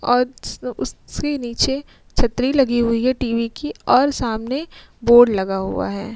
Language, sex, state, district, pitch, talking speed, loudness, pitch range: Hindi, female, Bihar, Vaishali, 240 Hz, 155 wpm, -19 LUFS, 230-260 Hz